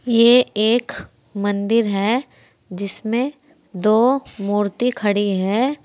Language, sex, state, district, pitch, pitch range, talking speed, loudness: Hindi, female, Uttar Pradesh, Saharanpur, 220 Hz, 205-245 Hz, 90 wpm, -19 LUFS